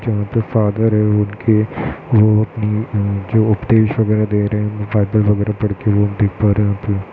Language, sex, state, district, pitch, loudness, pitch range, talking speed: Hindi, male, Uttar Pradesh, Jyotiba Phule Nagar, 105 Hz, -16 LUFS, 105-110 Hz, 220 wpm